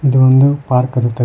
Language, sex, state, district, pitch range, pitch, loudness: Kannada, male, Karnataka, Koppal, 125-135 Hz, 130 Hz, -12 LUFS